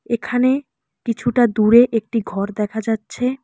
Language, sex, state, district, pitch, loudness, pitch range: Bengali, female, West Bengal, Alipurduar, 235 Hz, -18 LUFS, 220-250 Hz